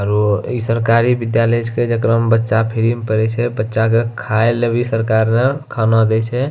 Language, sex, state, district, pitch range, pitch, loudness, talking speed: Angika, male, Bihar, Bhagalpur, 110-120 Hz, 115 Hz, -16 LUFS, 195 wpm